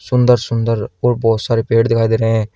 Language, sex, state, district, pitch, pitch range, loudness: Hindi, male, Uttar Pradesh, Shamli, 115 Hz, 115-120 Hz, -15 LUFS